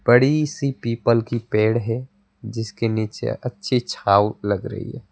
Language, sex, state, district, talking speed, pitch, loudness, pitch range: Hindi, male, West Bengal, Alipurduar, 150 wpm, 115 Hz, -22 LUFS, 105-125 Hz